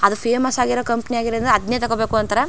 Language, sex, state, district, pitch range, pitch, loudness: Kannada, female, Karnataka, Chamarajanagar, 225-245 Hz, 235 Hz, -19 LUFS